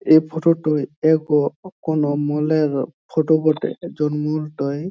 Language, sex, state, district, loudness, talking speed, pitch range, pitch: Bengali, male, West Bengal, Jhargram, -20 LUFS, 135 wpm, 150-160 Hz, 155 Hz